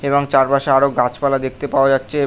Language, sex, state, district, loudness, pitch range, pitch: Bengali, male, West Bengal, North 24 Parganas, -16 LUFS, 135-140 Hz, 135 Hz